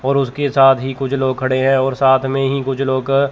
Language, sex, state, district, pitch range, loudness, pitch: Hindi, male, Chandigarh, Chandigarh, 130-135 Hz, -16 LUFS, 135 Hz